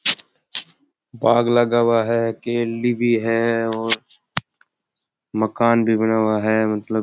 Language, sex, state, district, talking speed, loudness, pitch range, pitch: Rajasthani, male, Rajasthan, Churu, 130 wpm, -20 LUFS, 110-120 Hz, 115 Hz